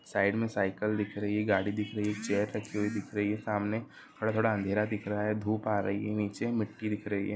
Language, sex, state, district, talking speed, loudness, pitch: Hindi, male, Uttar Pradesh, Deoria, 260 wpm, -32 LUFS, 105 Hz